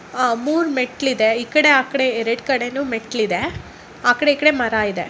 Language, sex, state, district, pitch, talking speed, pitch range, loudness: Kannada, female, Karnataka, Gulbarga, 250 Hz, 155 wpm, 230-275 Hz, -18 LUFS